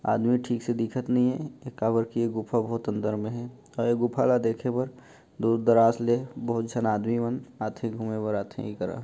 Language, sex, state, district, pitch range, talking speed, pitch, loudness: Chhattisgarhi, male, Chhattisgarh, Jashpur, 110-120 Hz, 220 wpm, 115 Hz, -27 LUFS